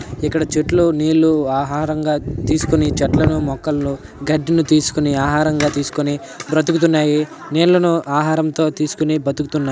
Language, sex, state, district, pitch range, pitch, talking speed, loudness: Telugu, male, Telangana, Nalgonda, 145-155 Hz, 150 Hz, 100 wpm, -17 LUFS